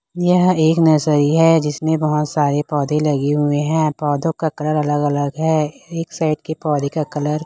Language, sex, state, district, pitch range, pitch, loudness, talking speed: Hindi, female, Chhattisgarh, Raipur, 145-160 Hz, 150 Hz, -17 LUFS, 195 wpm